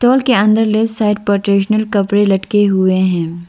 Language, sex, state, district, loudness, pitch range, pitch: Hindi, female, Arunachal Pradesh, Lower Dibang Valley, -13 LUFS, 195-215 Hz, 205 Hz